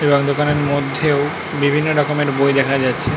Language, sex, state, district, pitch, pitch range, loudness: Bengali, male, West Bengal, North 24 Parganas, 145 Hz, 140-150 Hz, -17 LUFS